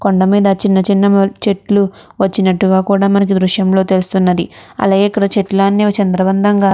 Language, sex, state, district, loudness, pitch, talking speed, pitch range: Telugu, female, Andhra Pradesh, Chittoor, -13 LUFS, 195 Hz, 140 wpm, 190-200 Hz